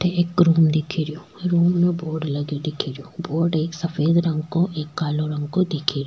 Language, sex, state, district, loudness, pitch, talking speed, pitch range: Rajasthani, female, Rajasthan, Churu, -22 LUFS, 160 Hz, 220 wpm, 155-175 Hz